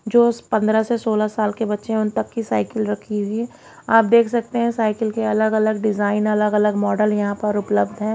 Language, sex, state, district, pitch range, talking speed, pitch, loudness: Hindi, female, Haryana, Jhajjar, 210-225 Hz, 205 wpm, 215 Hz, -19 LUFS